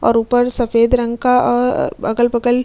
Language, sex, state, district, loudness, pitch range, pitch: Hindi, female, Uttar Pradesh, Jyotiba Phule Nagar, -15 LUFS, 235-245 Hz, 240 Hz